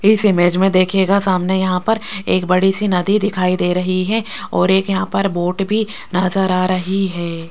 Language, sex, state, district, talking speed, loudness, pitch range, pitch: Hindi, female, Rajasthan, Jaipur, 200 wpm, -16 LUFS, 185-195 Hz, 190 Hz